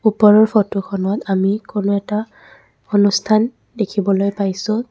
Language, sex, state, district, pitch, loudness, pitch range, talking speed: Assamese, female, Assam, Kamrup Metropolitan, 205 Hz, -17 LUFS, 200-215 Hz, 95 wpm